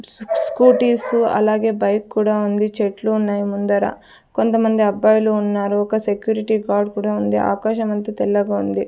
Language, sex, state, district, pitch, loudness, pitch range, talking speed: Telugu, female, Andhra Pradesh, Sri Satya Sai, 210 Hz, -18 LUFS, 205-220 Hz, 135 wpm